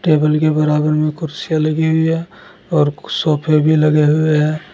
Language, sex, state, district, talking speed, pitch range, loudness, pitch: Hindi, male, Uttar Pradesh, Saharanpur, 175 wpm, 150-160 Hz, -15 LUFS, 155 Hz